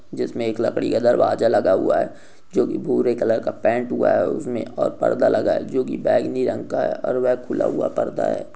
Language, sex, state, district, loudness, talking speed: Hindi, male, Uttar Pradesh, Jyotiba Phule Nagar, -21 LUFS, 225 wpm